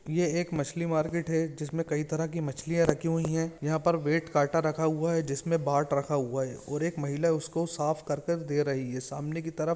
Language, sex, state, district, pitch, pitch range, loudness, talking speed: Hindi, male, Jharkhand, Jamtara, 160 Hz, 145-165 Hz, -30 LUFS, 220 wpm